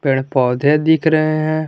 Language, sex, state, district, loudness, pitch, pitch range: Hindi, male, Jharkhand, Garhwa, -15 LUFS, 155 Hz, 135-155 Hz